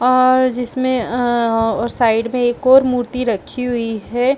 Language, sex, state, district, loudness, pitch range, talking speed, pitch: Hindi, female, Chhattisgarh, Sarguja, -16 LUFS, 235-255 Hz, 165 wpm, 245 Hz